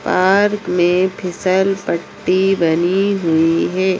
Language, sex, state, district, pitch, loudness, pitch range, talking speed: Hindi, female, Bihar, Jamui, 185 Hz, -16 LUFS, 175-195 Hz, 105 wpm